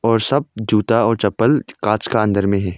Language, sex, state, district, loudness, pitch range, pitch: Hindi, male, Arunachal Pradesh, Longding, -17 LUFS, 100-115 Hz, 110 Hz